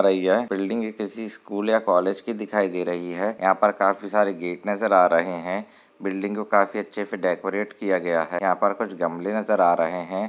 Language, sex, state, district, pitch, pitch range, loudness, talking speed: Hindi, male, Maharashtra, Nagpur, 100 Hz, 90-105 Hz, -23 LUFS, 210 wpm